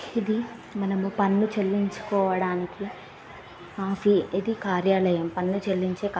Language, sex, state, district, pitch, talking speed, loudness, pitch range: Telugu, female, Andhra Pradesh, Srikakulam, 195 Hz, 95 wpm, -26 LUFS, 185-205 Hz